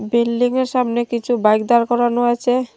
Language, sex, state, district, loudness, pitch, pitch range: Bengali, female, Tripura, Dhalai, -17 LUFS, 240 Hz, 235-245 Hz